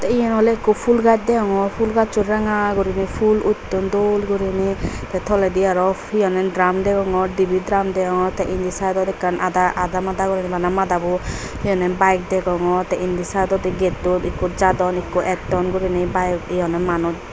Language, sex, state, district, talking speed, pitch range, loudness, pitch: Chakma, female, Tripura, Dhalai, 165 wpm, 180-200 Hz, -19 LUFS, 190 Hz